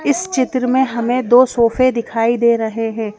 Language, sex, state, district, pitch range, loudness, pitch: Hindi, female, Madhya Pradesh, Bhopal, 230-255 Hz, -15 LUFS, 240 Hz